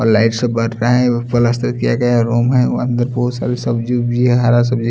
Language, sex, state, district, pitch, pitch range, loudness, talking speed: Hindi, male, Chhattisgarh, Raipur, 120 Hz, 115-125 Hz, -15 LUFS, 255 wpm